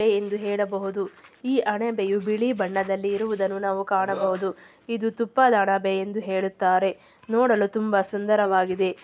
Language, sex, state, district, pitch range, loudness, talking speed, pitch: Kannada, female, Karnataka, Chamarajanagar, 195-220 Hz, -24 LUFS, 115 wpm, 200 Hz